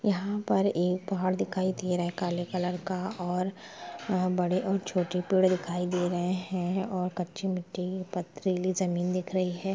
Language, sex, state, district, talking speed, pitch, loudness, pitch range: Hindi, female, Bihar, Sitamarhi, 170 wpm, 185 Hz, -30 LUFS, 180-190 Hz